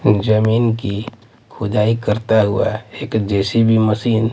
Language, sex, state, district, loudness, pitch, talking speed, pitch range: Hindi, male, Maharashtra, Mumbai Suburban, -17 LUFS, 110 Hz, 125 wpm, 105-115 Hz